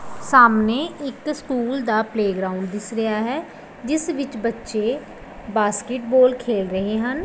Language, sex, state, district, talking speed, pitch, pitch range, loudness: Punjabi, female, Punjab, Pathankot, 125 wpm, 235 Hz, 215-265 Hz, -21 LUFS